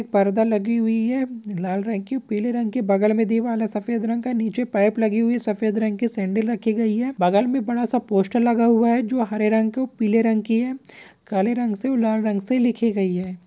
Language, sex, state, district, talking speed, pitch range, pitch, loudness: Hindi, female, Bihar, Samastipur, 245 wpm, 215-235 Hz, 225 Hz, -21 LUFS